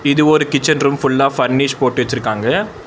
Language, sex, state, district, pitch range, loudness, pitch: Tamil, male, Tamil Nadu, Chennai, 130-145 Hz, -15 LUFS, 140 Hz